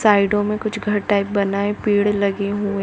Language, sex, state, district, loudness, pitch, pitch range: Hindi, female, Chhattisgarh, Bilaspur, -19 LUFS, 205 Hz, 200-210 Hz